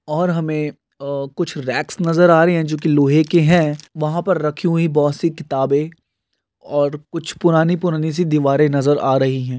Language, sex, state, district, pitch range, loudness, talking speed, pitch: Hindi, male, Andhra Pradesh, Guntur, 140-165 Hz, -17 LUFS, 195 wpm, 155 Hz